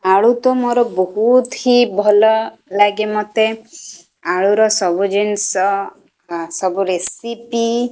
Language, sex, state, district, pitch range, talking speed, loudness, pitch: Odia, female, Odisha, Khordha, 190-235 Hz, 115 wpm, -16 LUFS, 210 Hz